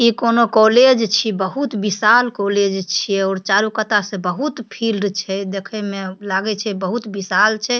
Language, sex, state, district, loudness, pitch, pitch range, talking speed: Maithili, female, Bihar, Supaul, -17 LUFS, 210 Hz, 195-225 Hz, 160 wpm